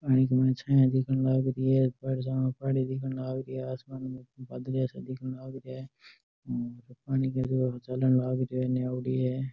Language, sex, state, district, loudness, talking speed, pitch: Marwari, male, Rajasthan, Nagaur, -29 LUFS, 140 wpm, 130 Hz